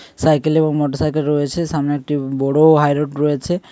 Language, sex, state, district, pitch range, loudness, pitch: Bengali, male, West Bengal, Paschim Medinipur, 145-155 Hz, -17 LUFS, 150 Hz